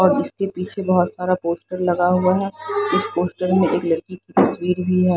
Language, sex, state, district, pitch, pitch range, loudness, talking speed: Hindi, female, Haryana, Jhajjar, 185 Hz, 180-190 Hz, -20 LUFS, 210 wpm